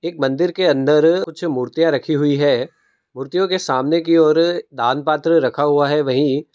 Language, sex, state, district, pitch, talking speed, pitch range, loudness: Hindi, male, Uttar Pradesh, Budaun, 155 Hz, 185 wpm, 145-165 Hz, -17 LUFS